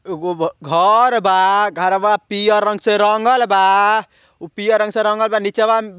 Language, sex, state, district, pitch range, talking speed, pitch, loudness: Bhojpuri, male, Uttar Pradesh, Ghazipur, 190-220 Hz, 170 wpm, 210 Hz, -15 LUFS